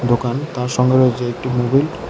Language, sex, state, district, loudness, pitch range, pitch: Bengali, male, Tripura, West Tripura, -17 LUFS, 120-130 Hz, 125 Hz